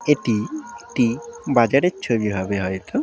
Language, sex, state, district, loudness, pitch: Bengali, male, West Bengal, Dakshin Dinajpur, -21 LUFS, 130 Hz